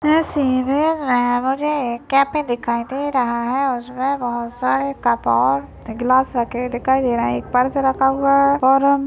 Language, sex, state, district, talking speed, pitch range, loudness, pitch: Hindi, female, Maharashtra, Solapur, 185 wpm, 240-275 Hz, -18 LUFS, 255 Hz